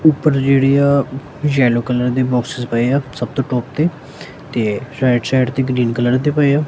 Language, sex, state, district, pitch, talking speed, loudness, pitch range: Punjabi, male, Punjab, Kapurthala, 130 Hz, 200 wpm, -16 LUFS, 125-140 Hz